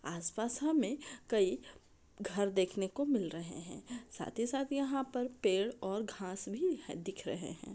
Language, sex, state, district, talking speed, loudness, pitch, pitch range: Hindi, female, Maharashtra, Pune, 165 wpm, -37 LUFS, 230 Hz, 190-270 Hz